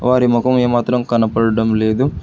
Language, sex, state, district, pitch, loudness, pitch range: Telugu, male, Telangana, Hyderabad, 120 Hz, -15 LUFS, 115-125 Hz